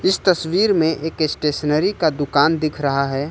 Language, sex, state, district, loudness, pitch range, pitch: Hindi, male, Jharkhand, Ranchi, -19 LUFS, 145-165 Hz, 155 Hz